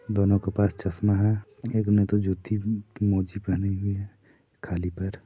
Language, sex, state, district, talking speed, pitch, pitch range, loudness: Hindi, male, Bihar, Sitamarhi, 180 wpm, 100 Hz, 95-105 Hz, -26 LUFS